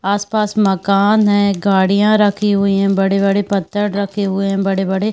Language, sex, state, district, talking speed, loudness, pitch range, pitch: Hindi, female, Uttar Pradesh, Varanasi, 165 wpm, -15 LUFS, 195-205 Hz, 200 Hz